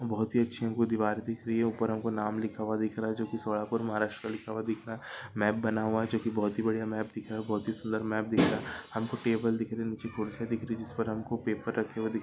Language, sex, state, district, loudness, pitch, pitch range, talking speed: Hindi, male, Maharashtra, Solapur, -32 LUFS, 110 Hz, 110-115 Hz, 280 wpm